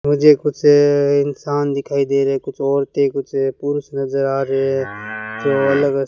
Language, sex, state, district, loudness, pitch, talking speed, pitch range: Hindi, male, Rajasthan, Bikaner, -17 LUFS, 140 Hz, 170 wpm, 135-145 Hz